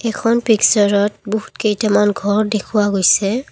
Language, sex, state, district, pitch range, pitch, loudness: Assamese, female, Assam, Kamrup Metropolitan, 205-225 Hz, 210 Hz, -15 LUFS